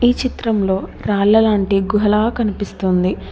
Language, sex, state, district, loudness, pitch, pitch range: Telugu, female, Telangana, Hyderabad, -17 LUFS, 210 Hz, 195-220 Hz